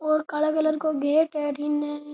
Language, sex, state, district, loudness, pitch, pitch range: Rajasthani, male, Rajasthan, Nagaur, -25 LUFS, 300 Hz, 295-310 Hz